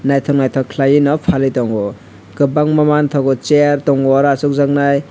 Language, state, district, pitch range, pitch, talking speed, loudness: Kokborok, Tripura, West Tripura, 135-145 Hz, 140 Hz, 165 wpm, -14 LUFS